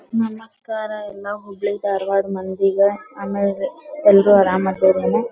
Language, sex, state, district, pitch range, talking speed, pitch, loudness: Kannada, female, Karnataka, Dharwad, 195-220 Hz, 115 wpm, 205 Hz, -18 LUFS